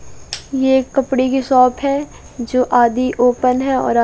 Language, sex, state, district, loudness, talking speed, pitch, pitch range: Hindi, female, Madhya Pradesh, Katni, -16 LUFS, 180 wpm, 255 Hz, 250-265 Hz